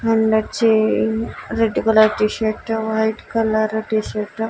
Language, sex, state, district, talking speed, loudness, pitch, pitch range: Telugu, female, Andhra Pradesh, Annamaya, 135 wpm, -19 LUFS, 220 Hz, 215-225 Hz